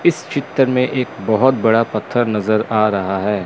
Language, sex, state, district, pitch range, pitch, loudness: Hindi, male, Chandigarh, Chandigarh, 105-130 Hz, 110 Hz, -17 LUFS